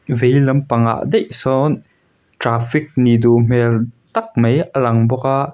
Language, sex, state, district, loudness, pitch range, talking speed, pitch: Mizo, male, Mizoram, Aizawl, -16 LUFS, 120-140 Hz, 160 wpm, 125 Hz